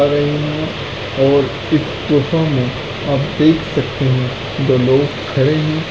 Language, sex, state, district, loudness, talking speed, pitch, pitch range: Hindi, male, Chhattisgarh, Raigarh, -16 LUFS, 130 wpm, 145 Hz, 130-155 Hz